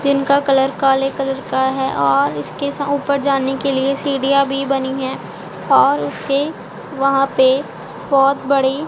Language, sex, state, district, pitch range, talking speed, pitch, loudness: Hindi, female, Punjab, Pathankot, 265-280 Hz, 160 wpm, 275 Hz, -17 LUFS